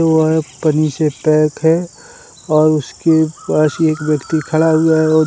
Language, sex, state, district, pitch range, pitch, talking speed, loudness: Hindi, male, Uttar Pradesh, Hamirpur, 155-160 Hz, 155 Hz, 170 wpm, -14 LUFS